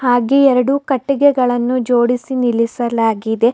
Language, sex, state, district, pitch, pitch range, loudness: Kannada, female, Karnataka, Bidar, 245 Hz, 235-265 Hz, -15 LUFS